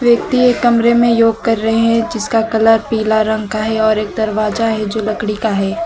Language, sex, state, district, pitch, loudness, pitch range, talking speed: Hindi, female, West Bengal, Alipurduar, 225 Hz, -14 LUFS, 215-230 Hz, 225 wpm